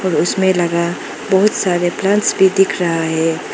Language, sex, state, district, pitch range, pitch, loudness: Hindi, female, Arunachal Pradesh, Lower Dibang Valley, 170-195 Hz, 185 Hz, -15 LUFS